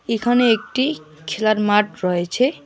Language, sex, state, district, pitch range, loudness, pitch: Bengali, male, West Bengal, Alipurduar, 185-245 Hz, -19 LUFS, 215 Hz